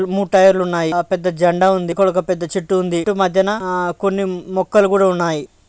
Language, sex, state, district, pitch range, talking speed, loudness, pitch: Telugu, male, Andhra Pradesh, Krishna, 175-190 Hz, 190 wpm, -16 LUFS, 185 Hz